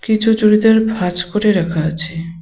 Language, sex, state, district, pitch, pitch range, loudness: Bengali, female, West Bengal, Cooch Behar, 205 Hz, 165-220 Hz, -15 LUFS